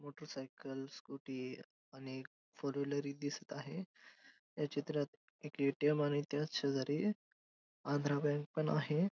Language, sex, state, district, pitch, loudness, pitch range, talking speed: Marathi, male, Maharashtra, Dhule, 145 Hz, -40 LUFS, 140-150 Hz, 120 wpm